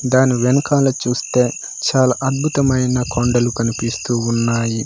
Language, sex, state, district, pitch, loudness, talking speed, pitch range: Telugu, male, Andhra Pradesh, Manyam, 125 Hz, -17 LUFS, 100 wpm, 120-130 Hz